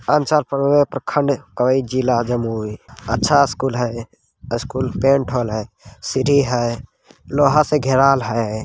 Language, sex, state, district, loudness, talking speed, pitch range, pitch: Magahi, male, Bihar, Jamui, -18 LUFS, 175 wpm, 115-140 Hz, 130 Hz